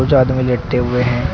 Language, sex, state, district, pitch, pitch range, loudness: Hindi, male, Uttar Pradesh, Shamli, 125 Hz, 125-130 Hz, -16 LUFS